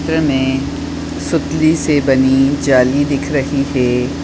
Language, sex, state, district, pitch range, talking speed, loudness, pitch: Hindi, female, Maharashtra, Nagpur, 135-155 Hz, 140 wpm, -15 LUFS, 140 Hz